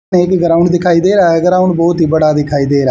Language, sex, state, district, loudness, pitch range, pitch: Hindi, male, Haryana, Charkhi Dadri, -11 LUFS, 155-180 Hz, 170 Hz